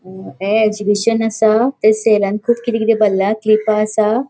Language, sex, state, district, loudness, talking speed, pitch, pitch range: Konkani, female, Goa, North and South Goa, -15 LUFS, 155 wpm, 215 Hz, 210-225 Hz